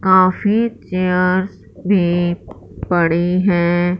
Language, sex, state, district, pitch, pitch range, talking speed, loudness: Hindi, female, Punjab, Fazilka, 180 Hz, 175-190 Hz, 75 wpm, -16 LUFS